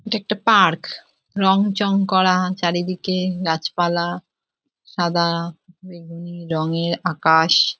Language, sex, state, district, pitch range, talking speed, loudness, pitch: Bengali, female, West Bengal, Jhargram, 170-190 Hz, 90 wpm, -19 LUFS, 175 Hz